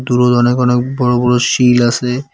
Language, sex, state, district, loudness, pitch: Bengali, male, West Bengal, Cooch Behar, -12 LUFS, 125 Hz